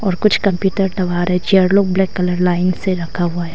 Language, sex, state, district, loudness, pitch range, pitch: Hindi, female, Arunachal Pradesh, Longding, -16 LUFS, 180-195 Hz, 185 Hz